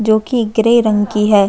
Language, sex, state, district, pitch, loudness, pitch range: Hindi, female, Chhattisgarh, Jashpur, 215 Hz, -13 LUFS, 210-225 Hz